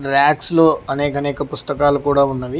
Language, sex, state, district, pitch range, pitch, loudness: Telugu, male, Telangana, Hyderabad, 140-145 Hz, 145 Hz, -17 LUFS